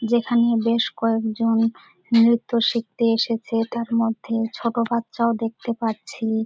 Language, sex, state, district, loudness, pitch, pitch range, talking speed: Bengali, female, West Bengal, Dakshin Dinajpur, -22 LUFS, 230 Hz, 225-235 Hz, 120 wpm